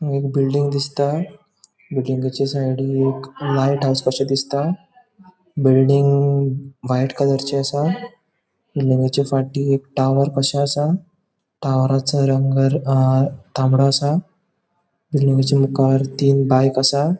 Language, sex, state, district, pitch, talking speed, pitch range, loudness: Konkani, male, Goa, North and South Goa, 140 Hz, 100 wpm, 135-145 Hz, -18 LUFS